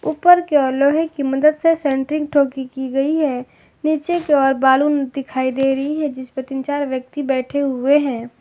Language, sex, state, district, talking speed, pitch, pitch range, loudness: Hindi, female, Jharkhand, Ranchi, 195 wpm, 275 Hz, 265-295 Hz, -18 LUFS